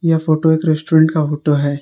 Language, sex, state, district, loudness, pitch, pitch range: Hindi, male, Jharkhand, Garhwa, -15 LUFS, 155 Hz, 150-160 Hz